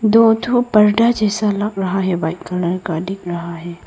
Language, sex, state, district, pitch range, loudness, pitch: Hindi, female, Arunachal Pradesh, Lower Dibang Valley, 175-215 Hz, -17 LUFS, 195 Hz